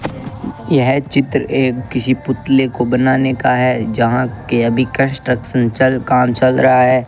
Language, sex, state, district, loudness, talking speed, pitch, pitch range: Hindi, male, Rajasthan, Bikaner, -15 LUFS, 155 wpm, 130 Hz, 125-130 Hz